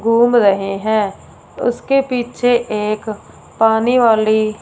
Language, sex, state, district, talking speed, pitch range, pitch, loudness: Hindi, female, Punjab, Fazilka, 105 wpm, 215-245 Hz, 220 Hz, -15 LUFS